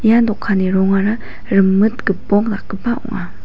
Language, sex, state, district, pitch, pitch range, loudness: Garo, female, Meghalaya, West Garo Hills, 205 Hz, 195-225 Hz, -16 LUFS